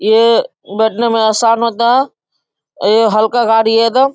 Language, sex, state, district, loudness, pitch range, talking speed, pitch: Hindi, male, Bihar, Darbhanga, -12 LUFS, 220-235 Hz, 160 wpm, 230 Hz